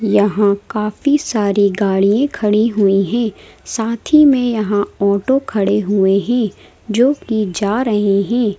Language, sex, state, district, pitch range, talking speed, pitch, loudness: Hindi, female, Madhya Pradesh, Bhopal, 200-235 Hz, 140 wpm, 210 Hz, -15 LUFS